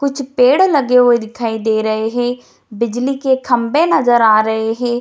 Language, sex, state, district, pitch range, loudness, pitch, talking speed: Hindi, female, Bihar, Jamui, 225-260 Hz, -14 LUFS, 245 Hz, 180 wpm